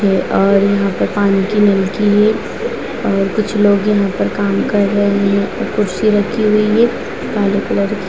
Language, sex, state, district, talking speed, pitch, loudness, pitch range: Hindi, female, Bihar, Vaishali, 200 wpm, 205 Hz, -14 LUFS, 200-210 Hz